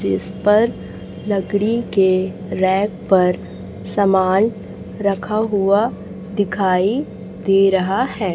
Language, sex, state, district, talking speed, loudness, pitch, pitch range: Hindi, female, Chhattisgarh, Raipur, 95 wpm, -18 LUFS, 195 Hz, 190-205 Hz